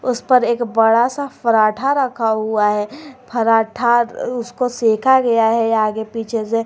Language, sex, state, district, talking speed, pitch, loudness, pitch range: Hindi, female, Jharkhand, Garhwa, 155 wpm, 230 Hz, -17 LUFS, 225-250 Hz